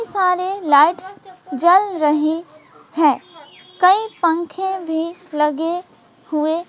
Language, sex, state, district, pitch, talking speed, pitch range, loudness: Hindi, female, West Bengal, Alipurduar, 345 Hz, 100 wpm, 315-375 Hz, -18 LUFS